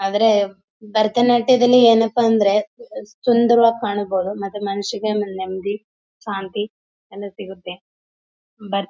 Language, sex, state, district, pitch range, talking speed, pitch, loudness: Kannada, female, Karnataka, Mysore, 200-225 Hz, 90 wpm, 210 Hz, -18 LUFS